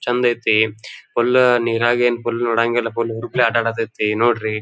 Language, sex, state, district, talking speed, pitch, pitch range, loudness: Kannada, male, Karnataka, Dharwad, 170 wpm, 115 Hz, 115-120 Hz, -18 LUFS